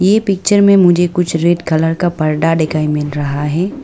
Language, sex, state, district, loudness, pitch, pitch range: Hindi, female, Arunachal Pradesh, Lower Dibang Valley, -13 LUFS, 165 Hz, 155-185 Hz